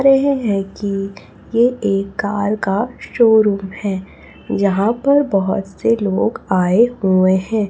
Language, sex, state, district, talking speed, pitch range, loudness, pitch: Hindi, female, Chhattisgarh, Raipur, 130 wpm, 195-230 Hz, -17 LUFS, 205 Hz